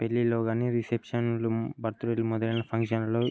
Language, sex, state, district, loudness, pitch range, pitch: Telugu, male, Andhra Pradesh, Guntur, -29 LUFS, 115-120 Hz, 115 Hz